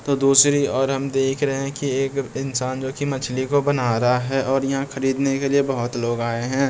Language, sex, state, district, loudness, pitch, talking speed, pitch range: Hindi, male, Bihar, Bhagalpur, -21 LUFS, 135 Hz, 235 wpm, 130-140 Hz